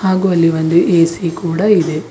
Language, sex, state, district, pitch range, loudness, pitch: Kannada, female, Karnataka, Bidar, 165-185 Hz, -13 LUFS, 170 Hz